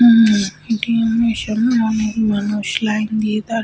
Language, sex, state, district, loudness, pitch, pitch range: Bengali, female, West Bengal, Paschim Medinipur, -17 LUFS, 220 Hz, 215-230 Hz